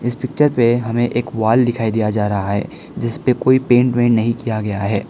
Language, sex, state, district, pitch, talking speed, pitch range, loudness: Hindi, male, Arunachal Pradesh, Lower Dibang Valley, 120 Hz, 225 wpm, 110-125 Hz, -17 LUFS